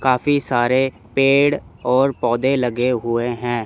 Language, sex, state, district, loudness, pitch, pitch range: Hindi, male, Chandigarh, Chandigarh, -18 LUFS, 125 Hz, 120-135 Hz